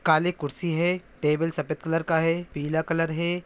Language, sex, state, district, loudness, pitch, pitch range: Hindi, male, Bihar, Araria, -26 LUFS, 165 Hz, 155-170 Hz